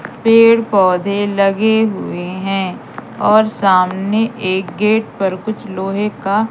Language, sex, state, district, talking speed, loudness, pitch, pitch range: Hindi, female, Madhya Pradesh, Katni, 120 wpm, -15 LUFS, 200 Hz, 190-220 Hz